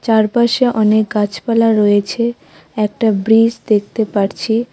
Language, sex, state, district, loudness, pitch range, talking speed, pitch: Bengali, female, West Bengal, Cooch Behar, -15 LUFS, 210-230 Hz, 100 wpm, 220 Hz